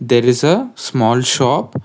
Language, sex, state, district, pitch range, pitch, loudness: English, male, Karnataka, Bangalore, 120-160 Hz, 125 Hz, -15 LUFS